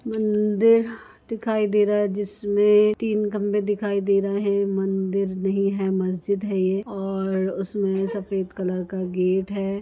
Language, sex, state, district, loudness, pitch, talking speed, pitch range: Hindi, female, Bihar, Gaya, -23 LUFS, 200 Hz, 155 wpm, 195-210 Hz